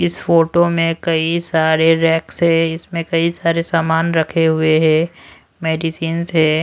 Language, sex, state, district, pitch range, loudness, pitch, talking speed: Hindi, male, Odisha, Sambalpur, 160-170 Hz, -16 LUFS, 165 Hz, 145 wpm